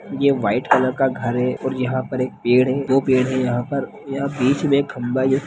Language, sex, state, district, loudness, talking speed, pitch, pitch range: Hindi, male, Bihar, Lakhisarai, -20 LUFS, 250 wpm, 130 Hz, 125-135 Hz